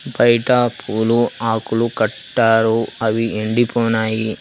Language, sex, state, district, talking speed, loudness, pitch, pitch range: Telugu, male, Telangana, Hyderabad, 80 wpm, -17 LUFS, 115 Hz, 110-120 Hz